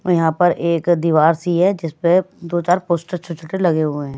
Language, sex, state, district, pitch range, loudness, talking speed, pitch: Hindi, male, Bihar, West Champaran, 165-180 Hz, -18 LUFS, 230 wpm, 170 Hz